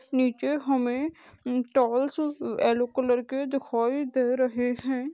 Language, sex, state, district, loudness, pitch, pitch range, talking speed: Hindi, female, Goa, North and South Goa, -27 LUFS, 260 Hz, 245-275 Hz, 105 wpm